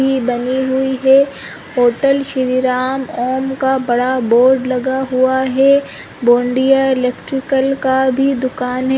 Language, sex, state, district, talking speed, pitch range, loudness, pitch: Hindi, female, Chhattisgarh, Raigarh, 125 wpm, 255-265 Hz, -15 LUFS, 260 Hz